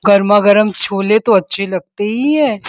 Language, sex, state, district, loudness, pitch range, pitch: Hindi, female, Uttar Pradesh, Muzaffarnagar, -13 LUFS, 195-220 Hz, 205 Hz